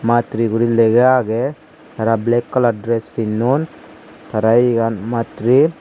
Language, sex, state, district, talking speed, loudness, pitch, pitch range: Chakma, male, Tripura, Unakoti, 125 wpm, -16 LUFS, 115 Hz, 115-125 Hz